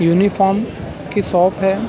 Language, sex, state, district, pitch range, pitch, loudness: Hindi, male, Bihar, Darbhanga, 180-200 Hz, 195 Hz, -17 LUFS